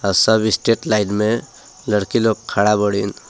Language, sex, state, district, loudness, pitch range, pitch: Bhojpuri, male, Jharkhand, Palamu, -17 LUFS, 100-110 Hz, 105 Hz